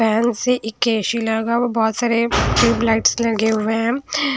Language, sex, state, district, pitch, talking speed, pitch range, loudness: Hindi, female, Punjab, Kapurthala, 230 Hz, 190 wpm, 220-240 Hz, -18 LUFS